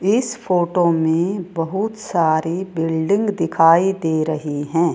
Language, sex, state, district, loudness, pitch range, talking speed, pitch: Hindi, female, Rajasthan, Jaipur, -19 LUFS, 160-195 Hz, 120 wpm, 170 Hz